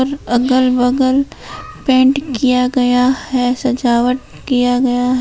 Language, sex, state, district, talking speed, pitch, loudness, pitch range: Hindi, female, Jharkhand, Palamu, 105 wpm, 255 Hz, -14 LUFS, 245-260 Hz